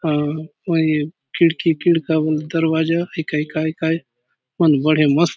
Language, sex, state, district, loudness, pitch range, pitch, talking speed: Halbi, male, Chhattisgarh, Bastar, -19 LUFS, 150-165 Hz, 160 Hz, 145 wpm